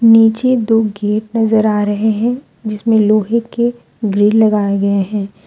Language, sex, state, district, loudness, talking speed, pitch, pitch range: Hindi, female, Jharkhand, Deoghar, -14 LUFS, 155 wpm, 215 Hz, 210-225 Hz